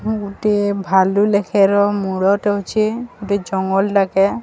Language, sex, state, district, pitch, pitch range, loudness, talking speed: Odia, female, Odisha, Sambalpur, 200 Hz, 195-205 Hz, -17 LUFS, 135 wpm